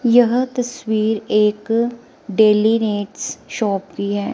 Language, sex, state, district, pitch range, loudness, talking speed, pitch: Hindi, female, Himachal Pradesh, Shimla, 210-240 Hz, -18 LUFS, 95 wpm, 220 Hz